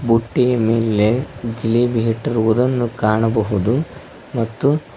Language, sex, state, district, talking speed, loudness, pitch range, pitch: Kannada, male, Karnataka, Koppal, 70 wpm, -18 LUFS, 115-125 Hz, 115 Hz